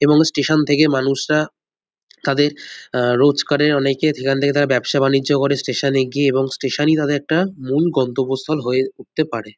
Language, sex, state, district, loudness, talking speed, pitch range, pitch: Bengali, male, West Bengal, North 24 Parganas, -18 LUFS, 170 wpm, 135-150 Hz, 140 Hz